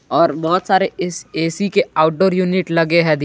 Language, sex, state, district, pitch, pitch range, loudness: Hindi, male, Jharkhand, Garhwa, 175 Hz, 160-185 Hz, -17 LUFS